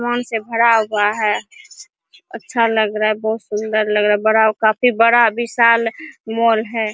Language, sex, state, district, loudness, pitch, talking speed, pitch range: Hindi, female, Chhattisgarh, Korba, -16 LUFS, 225 Hz, 175 wpm, 215-235 Hz